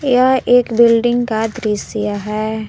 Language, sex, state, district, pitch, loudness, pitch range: Hindi, female, Jharkhand, Palamu, 225 Hz, -15 LUFS, 215-245 Hz